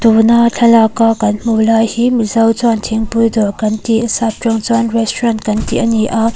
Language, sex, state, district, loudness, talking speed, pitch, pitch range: Mizo, female, Mizoram, Aizawl, -13 LUFS, 200 wpm, 225 Hz, 220-230 Hz